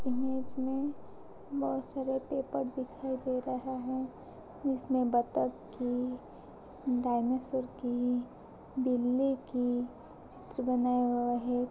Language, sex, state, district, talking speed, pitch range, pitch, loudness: Hindi, female, Chhattisgarh, Balrampur, 105 wpm, 245-260 Hz, 255 Hz, -33 LUFS